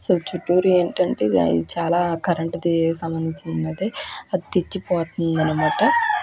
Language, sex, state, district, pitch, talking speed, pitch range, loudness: Telugu, female, Andhra Pradesh, Krishna, 170 Hz, 95 wpm, 165-180 Hz, -20 LUFS